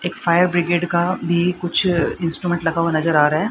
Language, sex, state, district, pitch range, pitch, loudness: Hindi, female, Haryana, Rohtak, 165-175 Hz, 175 Hz, -18 LUFS